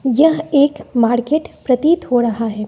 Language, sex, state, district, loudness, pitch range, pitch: Hindi, female, Bihar, West Champaran, -16 LUFS, 240-310 Hz, 260 Hz